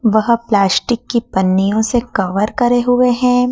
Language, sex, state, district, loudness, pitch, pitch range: Hindi, female, Madhya Pradesh, Dhar, -15 LUFS, 235 Hz, 200-245 Hz